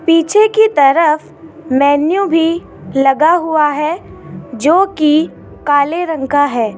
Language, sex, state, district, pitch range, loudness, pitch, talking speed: Hindi, female, Rajasthan, Jaipur, 285-335 Hz, -13 LUFS, 310 Hz, 125 wpm